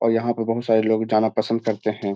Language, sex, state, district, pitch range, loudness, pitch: Hindi, male, Bihar, Jamui, 110-115 Hz, -21 LUFS, 110 Hz